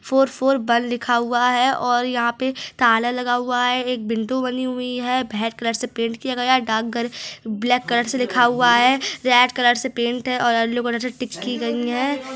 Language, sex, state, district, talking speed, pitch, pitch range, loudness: Hindi, male, Chhattisgarh, Rajnandgaon, 225 wpm, 245 Hz, 235-255 Hz, -20 LUFS